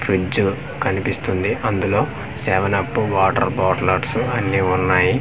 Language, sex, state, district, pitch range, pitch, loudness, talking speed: Telugu, male, Andhra Pradesh, Manyam, 95-115 Hz, 95 Hz, -19 LUFS, 115 wpm